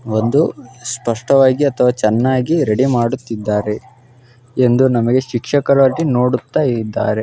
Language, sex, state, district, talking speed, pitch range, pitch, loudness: Kannada, male, Karnataka, Belgaum, 90 wpm, 115-130 Hz, 125 Hz, -15 LUFS